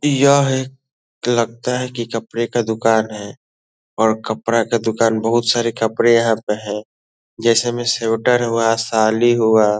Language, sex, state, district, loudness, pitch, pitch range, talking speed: Hindi, male, Bihar, Lakhisarai, -17 LUFS, 115 Hz, 110-120 Hz, 155 wpm